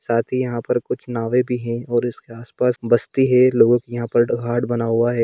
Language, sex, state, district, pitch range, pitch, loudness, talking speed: Hindi, male, Jharkhand, Sahebganj, 115-125 Hz, 120 Hz, -19 LUFS, 240 wpm